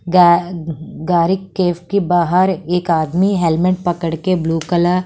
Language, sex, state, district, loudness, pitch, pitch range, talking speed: Hindi, female, Haryana, Charkhi Dadri, -16 LUFS, 175 Hz, 170-185 Hz, 155 wpm